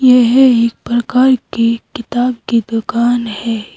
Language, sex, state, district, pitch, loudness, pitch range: Hindi, female, Uttar Pradesh, Saharanpur, 240 Hz, -13 LUFS, 230-250 Hz